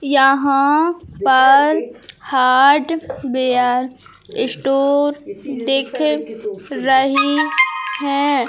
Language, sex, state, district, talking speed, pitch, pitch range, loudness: Hindi, male, Madhya Pradesh, Katni, 50 wpm, 270 Hz, 255-285 Hz, -16 LUFS